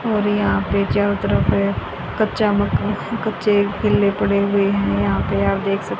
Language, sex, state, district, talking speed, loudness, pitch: Hindi, female, Haryana, Charkhi Dadri, 170 wpm, -19 LUFS, 200 Hz